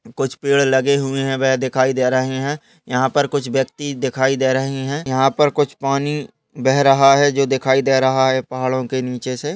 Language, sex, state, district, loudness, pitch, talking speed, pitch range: Hindi, male, Maharashtra, Aurangabad, -18 LUFS, 135 Hz, 215 wpm, 130-140 Hz